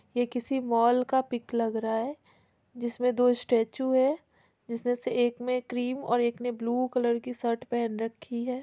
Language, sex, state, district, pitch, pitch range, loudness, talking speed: Hindi, female, Bihar, Muzaffarpur, 245 Hz, 235-250 Hz, -29 LUFS, 190 wpm